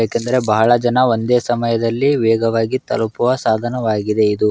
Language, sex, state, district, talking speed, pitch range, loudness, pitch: Kannada, male, Karnataka, Raichur, 120 wpm, 110-120 Hz, -16 LUFS, 115 Hz